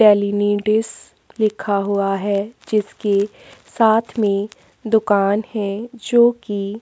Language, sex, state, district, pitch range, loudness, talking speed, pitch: Hindi, female, Chhattisgarh, Sukma, 200-220 Hz, -19 LUFS, 105 wpm, 210 Hz